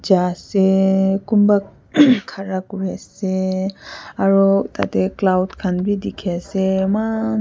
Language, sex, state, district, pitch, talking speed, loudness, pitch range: Nagamese, female, Nagaland, Kohima, 195 Hz, 115 wpm, -18 LUFS, 185-200 Hz